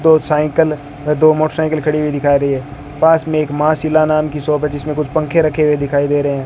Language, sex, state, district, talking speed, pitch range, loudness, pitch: Hindi, male, Rajasthan, Bikaner, 260 wpm, 145-155 Hz, -15 LUFS, 150 Hz